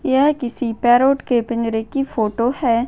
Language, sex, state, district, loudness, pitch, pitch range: Hindi, female, Maharashtra, Solapur, -18 LUFS, 240 Hz, 230-270 Hz